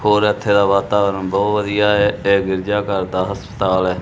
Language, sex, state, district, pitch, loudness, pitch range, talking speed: Punjabi, male, Punjab, Kapurthala, 100 Hz, -17 LUFS, 95-105 Hz, 180 wpm